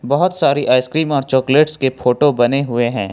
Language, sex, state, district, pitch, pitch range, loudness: Hindi, male, Jharkhand, Ranchi, 135 Hz, 125-145 Hz, -15 LUFS